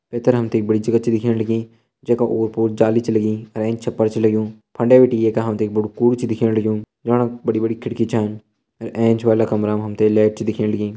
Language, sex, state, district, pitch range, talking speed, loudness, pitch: Hindi, male, Uttarakhand, Uttarkashi, 110-115 Hz, 270 wpm, -18 LUFS, 110 Hz